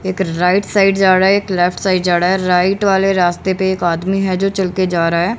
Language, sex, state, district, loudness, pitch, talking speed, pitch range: Hindi, female, Haryana, Rohtak, -14 LUFS, 190 Hz, 265 wpm, 180-195 Hz